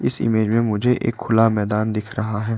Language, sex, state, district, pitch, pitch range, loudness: Hindi, male, Arunachal Pradesh, Lower Dibang Valley, 110 Hz, 105-115 Hz, -20 LUFS